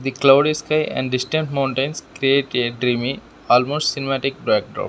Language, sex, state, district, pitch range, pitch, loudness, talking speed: English, male, Arunachal Pradesh, Lower Dibang Valley, 130-145 Hz, 135 Hz, -19 LUFS, 145 wpm